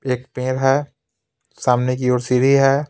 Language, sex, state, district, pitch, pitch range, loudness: Hindi, male, Bihar, Patna, 130 Hz, 125-135 Hz, -18 LUFS